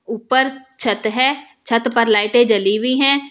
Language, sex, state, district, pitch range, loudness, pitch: Hindi, female, Delhi, New Delhi, 220-265 Hz, -16 LUFS, 245 Hz